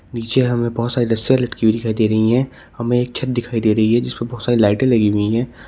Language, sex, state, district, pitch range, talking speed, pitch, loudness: Hindi, male, Uttar Pradesh, Shamli, 110-120 Hz, 265 wpm, 115 Hz, -17 LUFS